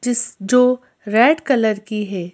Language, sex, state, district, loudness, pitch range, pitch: Hindi, female, Madhya Pradesh, Bhopal, -17 LUFS, 210-250 Hz, 235 Hz